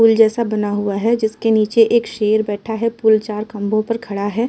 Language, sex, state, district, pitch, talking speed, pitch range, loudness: Hindi, female, Uttar Pradesh, Jalaun, 220 Hz, 225 wpm, 210-225 Hz, -17 LUFS